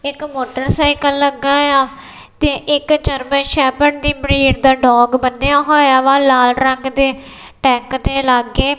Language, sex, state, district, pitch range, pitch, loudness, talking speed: Punjabi, female, Punjab, Kapurthala, 260-285 Hz, 275 Hz, -13 LUFS, 150 wpm